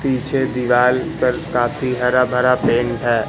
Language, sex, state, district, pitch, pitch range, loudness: Hindi, male, Madhya Pradesh, Katni, 125 Hz, 120-130 Hz, -17 LUFS